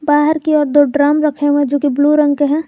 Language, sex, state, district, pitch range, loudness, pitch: Hindi, female, Jharkhand, Garhwa, 290-300 Hz, -13 LUFS, 290 Hz